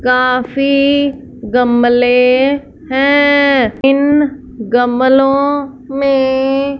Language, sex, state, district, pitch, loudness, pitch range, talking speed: Hindi, female, Punjab, Fazilka, 270 Hz, -12 LUFS, 250-280 Hz, 60 wpm